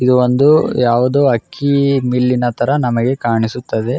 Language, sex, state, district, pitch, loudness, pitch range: Kannada, male, Karnataka, Raichur, 125 Hz, -14 LUFS, 120-140 Hz